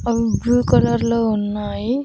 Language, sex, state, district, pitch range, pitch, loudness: Telugu, female, Andhra Pradesh, Annamaya, 205-235 Hz, 225 Hz, -18 LUFS